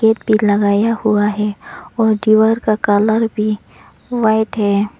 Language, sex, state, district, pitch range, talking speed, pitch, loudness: Hindi, female, Arunachal Pradesh, Longding, 210-220 Hz, 145 wpm, 215 Hz, -15 LUFS